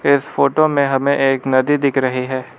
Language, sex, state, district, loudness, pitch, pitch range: Hindi, male, Arunachal Pradesh, Lower Dibang Valley, -16 LUFS, 135 Hz, 130-140 Hz